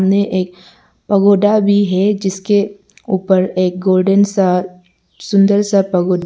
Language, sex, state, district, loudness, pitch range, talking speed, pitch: Hindi, male, Arunachal Pradesh, Lower Dibang Valley, -14 LUFS, 185-200 Hz, 125 wpm, 195 Hz